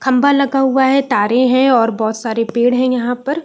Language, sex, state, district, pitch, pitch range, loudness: Hindi, female, Uttarakhand, Uttarkashi, 255 Hz, 235-270 Hz, -14 LUFS